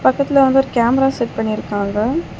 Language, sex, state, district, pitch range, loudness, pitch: Tamil, female, Tamil Nadu, Chennai, 220-270 Hz, -16 LUFS, 260 Hz